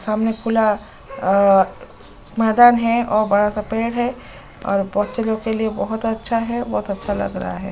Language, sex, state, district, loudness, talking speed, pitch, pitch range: Hindi, female, Uttar Pradesh, Jalaun, -19 LUFS, 180 wpm, 220 Hz, 210-230 Hz